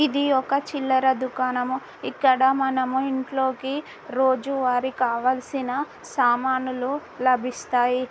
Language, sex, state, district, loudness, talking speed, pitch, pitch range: Telugu, female, Telangana, Karimnagar, -23 LUFS, 90 wpm, 260 Hz, 255-270 Hz